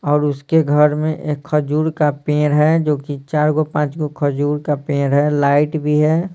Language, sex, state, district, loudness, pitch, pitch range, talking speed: Hindi, male, Bihar, Patna, -17 LUFS, 150 Hz, 145-155 Hz, 180 wpm